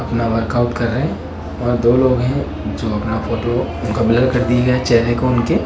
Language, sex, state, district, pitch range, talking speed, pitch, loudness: Hindi, male, Rajasthan, Jaipur, 115-125 Hz, 180 wpm, 120 Hz, -17 LUFS